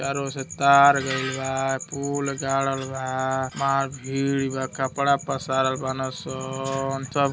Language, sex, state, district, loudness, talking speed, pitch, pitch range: Hindi, male, Uttar Pradesh, Gorakhpur, -24 LUFS, 140 wpm, 135 Hz, 130-140 Hz